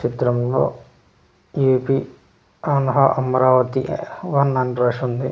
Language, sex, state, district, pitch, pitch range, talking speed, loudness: Telugu, male, Andhra Pradesh, Manyam, 130 Hz, 125-135 Hz, 100 wpm, -19 LUFS